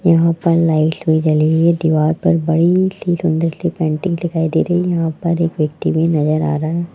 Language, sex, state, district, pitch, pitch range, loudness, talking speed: Hindi, male, Rajasthan, Jaipur, 165 Hz, 160-170 Hz, -16 LUFS, 235 wpm